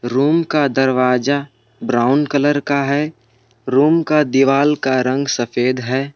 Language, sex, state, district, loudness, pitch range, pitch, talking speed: Hindi, male, Jharkhand, Palamu, -16 LUFS, 125-145 Hz, 135 Hz, 135 wpm